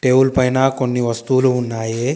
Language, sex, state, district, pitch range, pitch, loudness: Telugu, female, Telangana, Hyderabad, 120-130 Hz, 130 Hz, -17 LUFS